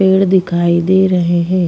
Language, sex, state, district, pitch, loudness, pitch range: Hindi, female, Chhattisgarh, Bastar, 180 Hz, -13 LUFS, 175-190 Hz